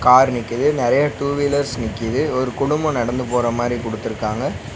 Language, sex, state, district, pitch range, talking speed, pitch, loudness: Tamil, male, Tamil Nadu, Nilgiris, 115-140 Hz, 150 wpm, 125 Hz, -19 LUFS